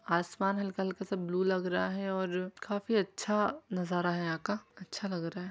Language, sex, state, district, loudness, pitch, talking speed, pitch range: Hindi, female, Bihar, Saran, -34 LUFS, 190 Hz, 185 wpm, 180-195 Hz